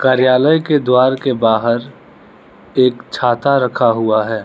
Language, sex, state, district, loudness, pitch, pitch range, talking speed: Hindi, male, Arunachal Pradesh, Lower Dibang Valley, -14 LUFS, 125 Hz, 115-130 Hz, 135 wpm